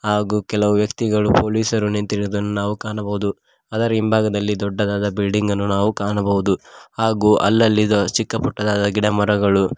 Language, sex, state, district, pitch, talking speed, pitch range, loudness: Kannada, male, Karnataka, Koppal, 105 Hz, 115 wpm, 100-110 Hz, -19 LUFS